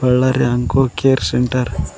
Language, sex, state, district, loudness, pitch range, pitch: Kannada, male, Karnataka, Koppal, -16 LUFS, 120-130 Hz, 125 Hz